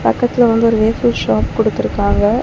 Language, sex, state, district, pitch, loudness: Tamil, female, Tamil Nadu, Chennai, 220 Hz, -14 LUFS